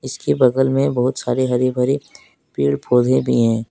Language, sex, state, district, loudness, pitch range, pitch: Hindi, male, Jharkhand, Deoghar, -18 LUFS, 125-130 Hz, 130 Hz